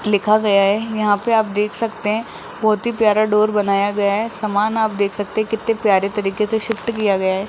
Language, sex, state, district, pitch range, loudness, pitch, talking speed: Hindi, female, Rajasthan, Jaipur, 205-220 Hz, -18 LUFS, 210 Hz, 230 wpm